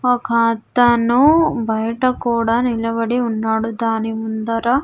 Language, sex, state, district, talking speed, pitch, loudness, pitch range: Telugu, female, Andhra Pradesh, Sri Satya Sai, 100 wpm, 230 Hz, -17 LUFS, 225-245 Hz